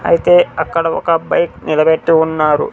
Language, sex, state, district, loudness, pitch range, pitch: Telugu, male, Andhra Pradesh, Sri Satya Sai, -13 LUFS, 160-170 Hz, 165 Hz